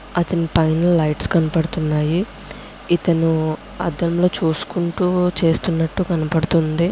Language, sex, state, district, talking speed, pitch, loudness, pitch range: Telugu, female, Andhra Pradesh, Krishna, 80 wpm, 170 Hz, -19 LUFS, 160-175 Hz